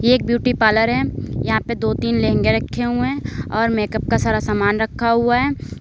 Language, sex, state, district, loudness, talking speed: Hindi, female, Uttar Pradesh, Lalitpur, -18 LUFS, 215 wpm